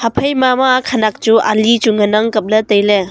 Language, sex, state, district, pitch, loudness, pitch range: Wancho, female, Arunachal Pradesh, Longding, 220 Hz, -13 LUFS, 215-235 Hz